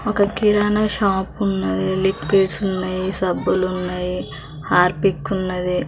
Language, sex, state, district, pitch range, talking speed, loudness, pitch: Telugu, female, Andhra Pradesh, Srikakulam, 180-195 Hz, 80 wpm, -20 LUFS, 185 Hz